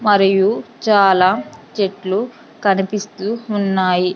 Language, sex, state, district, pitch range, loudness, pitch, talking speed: Telugu, female, Andhra Pradesh, Sri Satya Sai, 190-210 Hz, -17 LUFS, 200 Hz, 70 wpm